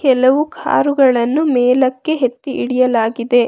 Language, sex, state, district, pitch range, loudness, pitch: Kannada, female, Karnataka, Bangalore, 245-275 Hz, -15 LUFS, 255 Hz